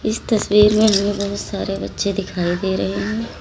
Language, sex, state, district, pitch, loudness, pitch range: Hindi, female, Uttar Pradesh, Lalitpur, 200 Hz, -19 LUFS, 175-210 Hz